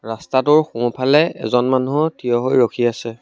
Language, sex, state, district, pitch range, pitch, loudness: Assamese, male, Assam, Sonitpur, 120-145 Hz, 125 Hz, -17 LUFS